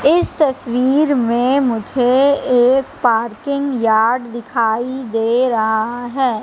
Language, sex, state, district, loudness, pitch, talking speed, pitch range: Hindi, female, Madhya Pradesh, Katni, -16 LUFS, 245 Hz, 105 wpm, 230-270 Hz